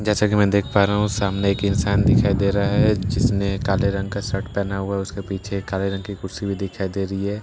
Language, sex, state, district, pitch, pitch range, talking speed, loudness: Hindi, male, Bihar, Katihar, 100 Hz, 95-100 Hz, 275 wpm, -21 LUFS